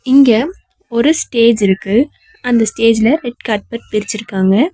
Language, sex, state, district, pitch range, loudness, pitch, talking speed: Tamil, female, Tamil Nadu, Nilgiris, 215-260 Hz, -14 LUFS, 230 Hz, 115 wpm